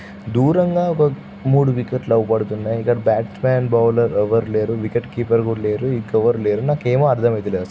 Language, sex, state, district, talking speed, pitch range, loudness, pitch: Telugu, male, Andhra Pradesh, Guntur, 150 wpm, 110-130 Hz, -18 LUFS, 115 Hz